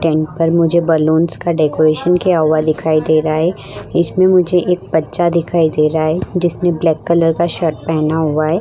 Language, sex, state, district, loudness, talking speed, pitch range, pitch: Hindi, female, Bihar, Vaishali, -14 LUFS, 200 wpm, 155-170 Hz, 160 Hz